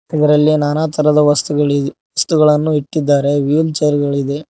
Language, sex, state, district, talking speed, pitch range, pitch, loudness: Kannada, male, Karnataka, Koppal, 120 wpm, 145-155 Hz, 150 Hz, -14 LUFS